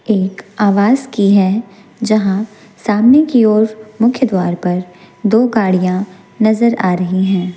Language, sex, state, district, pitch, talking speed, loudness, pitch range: Hindi, female, Chhattisgarh, Raipur, 205 Hz, 135 wpm, -14 LUFS, 190-225 Hz